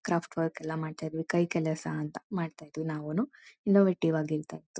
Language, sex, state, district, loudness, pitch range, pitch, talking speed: Kannada, female, Karnataka, Mysore, -31 LUFS, 155-175 Hz, 160 Hz, 185 wpm